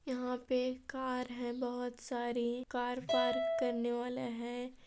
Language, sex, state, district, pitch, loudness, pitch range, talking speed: Hindi, female, Chhattisgarh, Balrampur, 245 Hz, -37 LUFS, 240-255 Hz, 125 wpm